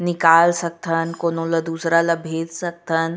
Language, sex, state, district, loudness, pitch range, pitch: Chhattisgarhi, female, Chhattisgarh, Raigarh, -19 LUFS, 165-170 Hz, 165 Hz